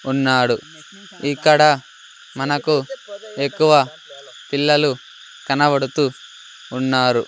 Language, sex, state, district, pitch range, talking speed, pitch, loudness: Telugu, male, Andhra Pradesh, Sri Satya Sai, 135-150 Hz, 60 wpm, 145 Hz, -18 LUFS